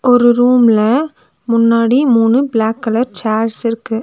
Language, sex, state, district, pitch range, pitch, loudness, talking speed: Tamil, female, Tamil Nadu, Nilgiris, 225-250 Hz, 230 Hz, -13 LUFS, 120 wpm